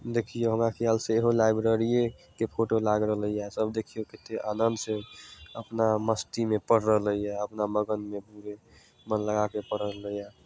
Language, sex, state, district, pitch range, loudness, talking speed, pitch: Maithili, male, Bihar, Samastipur, 105-115 Hz, -28 LUFS, 155 wpm, 110 Hz